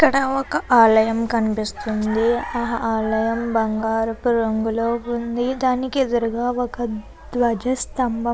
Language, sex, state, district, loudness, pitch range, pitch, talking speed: Telugu, female, Andhra Pradesh, Chittoor, -21 LUFS, 225-245 Hz, 235 Hz, 115 wpm